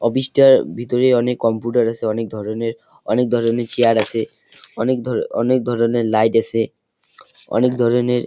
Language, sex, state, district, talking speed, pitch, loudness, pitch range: Bengali, male, West Bengal, Jalpaiguri, 145 wpm, 120 Hz, -18 LUFS, 115-125 Hz